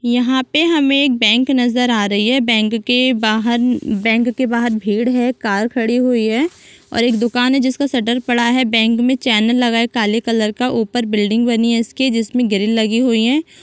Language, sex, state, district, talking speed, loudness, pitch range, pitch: Hindi, female, Chhattisgarh, Rajnandgaon, 205 wpm, -15 LUFS, 225-250 Hz, 240 Hz